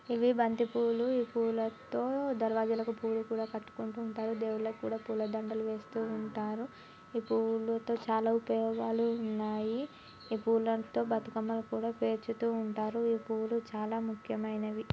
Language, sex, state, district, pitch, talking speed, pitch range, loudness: Telugu, female, Telangana, Karimnagar, 225 Hz, 115 wpm, 220-230 Hz, -34 LUFS